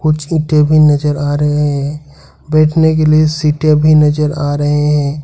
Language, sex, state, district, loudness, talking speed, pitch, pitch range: Hindi, male, Jharkhand, Ranchi, -12 LUFS, 185 wpm, 150 Hz, 145-155 Hz